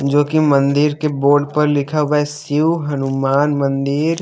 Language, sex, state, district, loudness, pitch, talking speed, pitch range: Hindi, male, Haryana, Jhajjar, -16 LUFS, 145 Hz, 170 wpm, 140-150 Hz